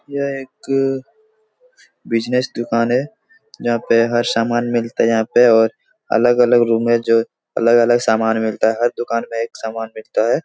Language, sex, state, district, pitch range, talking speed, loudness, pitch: Hindi, male, Bihar, Araria, 115-125 Hz, 165 wpm, -17 LUFS, 120 Hz